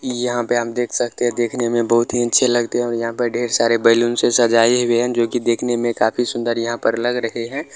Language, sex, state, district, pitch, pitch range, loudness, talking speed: Hindi, male, Bihar, Muzaffarpur, 120 Hz, 115-120 Hz, -18 LUFS, 265 wpm